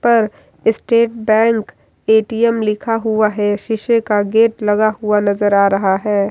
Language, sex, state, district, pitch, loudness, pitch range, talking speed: Hindi, female, Bihar, Kishanganj, 215 Hz, -15 LUFS, 205-225 Hz, 150 wpm